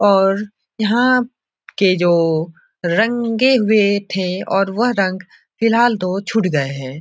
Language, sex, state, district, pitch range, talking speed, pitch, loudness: Hindi, male, Bihar, Jahanabad, 180-225 Hz, 130 wpm, 195 Hz, -17 LUFS